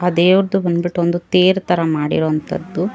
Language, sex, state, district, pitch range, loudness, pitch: Kannada, female, Karnataka, Bangalore, 170-185 Hz, -16 LUFS, 175 Hz